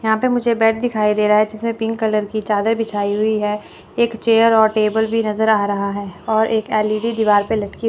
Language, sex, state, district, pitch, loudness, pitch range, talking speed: Hindi, female, Chandigarh, Chandigarh, 220 Hz, -17 LUFS, 210-225 Hz, 235 wpm